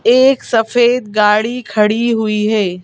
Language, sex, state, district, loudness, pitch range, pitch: Hindi, female, Madhya Pradesh, Bhopal, -13 LUFS, 210-245 Hz, 220 Hz